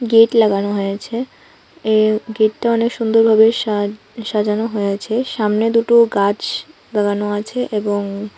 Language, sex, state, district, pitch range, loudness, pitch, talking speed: Bengali, female, Tripura, West Tripura, 205-230 Hz, -17 LUFS, 215 Hz, 115 wpm